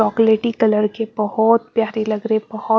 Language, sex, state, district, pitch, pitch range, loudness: Hindi, female, Bihar, West Champaran, 220 Hz, 215-225 Hz, -18 LUFS